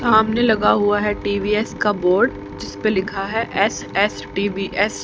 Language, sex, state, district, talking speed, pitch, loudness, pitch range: Hindi, female, Haryana, Charkhi Dadri, 155 wpm, 205 Hz, -19 LUFS, 195-215 Hz